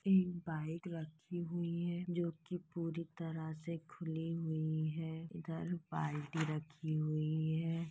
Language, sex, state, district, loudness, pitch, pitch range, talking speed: Hindi, female, Uttar Pradesh, Deoria, -40 LUFS, 165 Hz, 155-170 Hz, 135 wpm